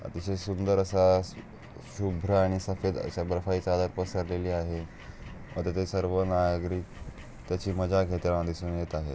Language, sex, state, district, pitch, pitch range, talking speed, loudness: Marathi, male, Maharashtra, Aurangabad, 90 Hz, 90-95 Hz, 130 wpm, -29 LUFS